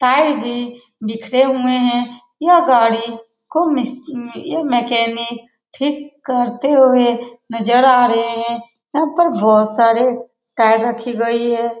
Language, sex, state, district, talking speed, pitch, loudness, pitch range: Hindi, female, Bihar, Saran, 135 wpm, 240 Hz, -15 LUFS, 235-260 Hz